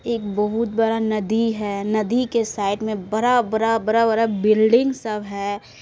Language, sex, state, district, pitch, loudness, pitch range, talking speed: Maithili, female, Bihar, Supaul, 220 Hz, -20 LUFS, 210-230 Hz, 185 wpm